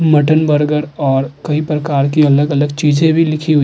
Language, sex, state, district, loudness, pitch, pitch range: Hindi, male, Uttar Pradesh, Muzaffarnagar, -13 LUFS, 150 Hz, 145-155 Hz